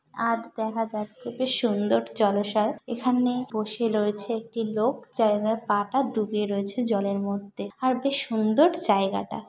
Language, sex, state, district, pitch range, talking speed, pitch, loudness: Bengali, female, West Bengal, Dakshin Dinajpur, 205-240 Hz, 145 wpm, 220 Hz, -25 LUFS